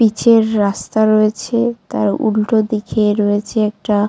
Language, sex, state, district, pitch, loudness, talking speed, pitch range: Bengali, female, West Bengal, Jalpaiguri, 215 Hz, -15 LUFS, 130 wpm, 210-225 Hz